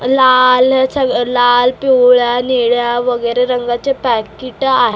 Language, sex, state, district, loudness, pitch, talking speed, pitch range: Marathi, female, Maharashtra, Mumbai Suburban, -12 LUFS, 250 Hz, 110 wpm, 245-260 Hz